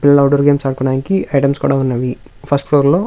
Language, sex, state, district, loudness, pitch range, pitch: Telugu, male, Andhra Pradesh, Visakhapatnam, -15 LUFS, 135-145 Hz, 140 Hz